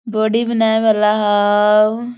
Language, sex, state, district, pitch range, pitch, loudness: Hindi, female, Jharkhand, Sahebganj, 210-225 Hz, 220 Hz, -14 LUFS